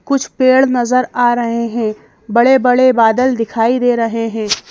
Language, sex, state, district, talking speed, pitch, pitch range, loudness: Hindi, female, Madhya Pradesh, Bhopal, 155 wpm, 240 Hz, 230-255 Hz, -13 LUFS